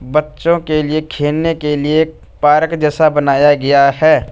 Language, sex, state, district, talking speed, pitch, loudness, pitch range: Hindi, male, Punjab, Fazilka, 155 wpm, 150 Hz, -13 LUFS, 145-155 Hz